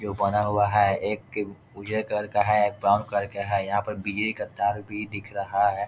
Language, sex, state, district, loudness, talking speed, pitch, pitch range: Hindi, male, Bihar, Jahanabad, -26 LUFS, 235 wpm, 105 Hz, 100-105 Hz